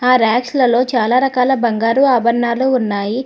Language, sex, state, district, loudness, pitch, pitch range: Telugu, female, Telangana, Hyderabad, -14 LUFS, 245 Hz, 235-255 Hz